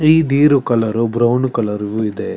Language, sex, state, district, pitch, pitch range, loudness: Kannada, male, Karnataka, Chamarajanagar, 120 Hz, 110-140 Hz, -15 LUFS